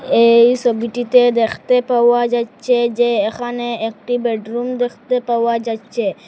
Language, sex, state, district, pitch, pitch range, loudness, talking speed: Bengali, female, Assam, Hailakandi, 240 Hz, 235-245 Hz, -16 LUFS, 115 wpm